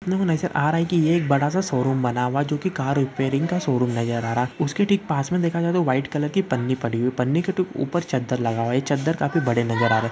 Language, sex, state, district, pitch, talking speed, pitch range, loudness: Hindi, male, Uttarakhand, Uttarkashi, 140 Hz, 300 wpm, 125-170 Hz, -22 LUFS